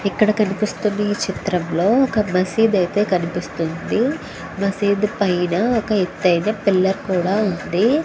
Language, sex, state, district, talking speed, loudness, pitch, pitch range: Telugu, female, Andhra Pradesh, Krishna, 135 wpm, -19 LUFS, 200 Hz, 185-215 Hz